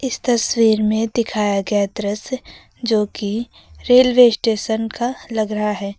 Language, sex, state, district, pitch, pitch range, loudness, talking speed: Hindi, female, Uttar Pradesh, Lucknow, 220 Hz, 210-240 Hz, -18 LUFS, 140 wpm